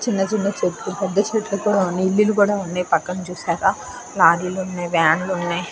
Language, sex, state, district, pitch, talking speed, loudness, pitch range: Telugu, female, Andhra Pradesh, Krishna, 190 Hz, 135 wpm, -20 LUFS, 180-205 Hz